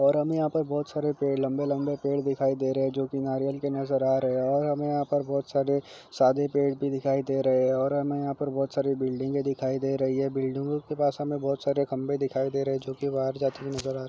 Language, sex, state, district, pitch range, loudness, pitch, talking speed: Hindi, male, Chhattisgarh, Jashpur, 135-140 Hz, -27 LUFS, 140 Hz, 275 wpm